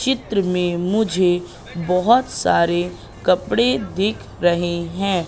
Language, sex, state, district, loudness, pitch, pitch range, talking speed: Hindi, female, Madhya Pradesh, Katni, -19 LUFS, 180 Hz, 175-200 Hz, 100 wpm